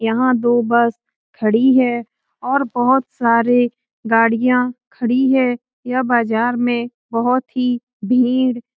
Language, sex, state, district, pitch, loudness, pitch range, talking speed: Hindi, female, Bihar, Lakhisarai, 245 Hz, -17 LUFS, 235-255 Hz, 125 wpm